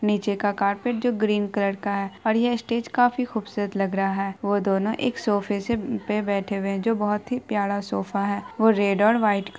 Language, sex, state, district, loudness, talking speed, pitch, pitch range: Hindi, female, Bihar, Araria, -24 LUFS, 205 wpm, 205 Hz, 200-225 Hz